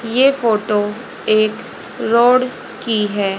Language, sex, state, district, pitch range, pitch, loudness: Hindi, female, Haryana, Rohtak, 210-245 Hz, 225 Hz, -16 LUFS